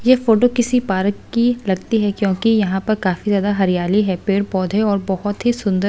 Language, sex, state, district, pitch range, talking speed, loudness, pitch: Hindi, female, Delhi, New Delhi, 190-225 Hz, 195 wpm, -18 LUFS, 205 Hz